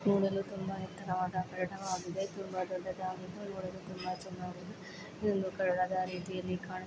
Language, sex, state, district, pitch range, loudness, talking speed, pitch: Kannada, female, Karnataka, Dakshina Kannada, 185-195 Hz, -37 LUFS, 115 wpm, 185 Hz